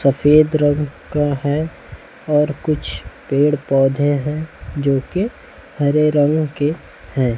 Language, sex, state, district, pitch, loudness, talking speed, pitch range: Hindi, male, Chhattisgarh, Raipur, 145 Hz, -18 LUFS, 115 wpm, 140-150 Hz